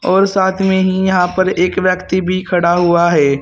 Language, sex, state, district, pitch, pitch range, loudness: Hindi, male, Uttar Pradesh, Saharanpur, 185 Hz, 175-190 Hz, -14 LUFS